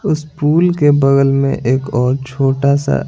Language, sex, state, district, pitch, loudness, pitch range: Hindi, male, Bihar, Patna, 140 Hz, -14 LUFS, 135-145 Hz